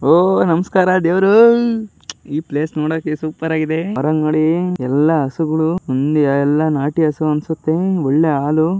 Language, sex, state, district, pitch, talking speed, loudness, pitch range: Kannada, male, Karnataka, Shimoga, 160 Hz, 130 wpm, -16 LUFS, 150-170 Hz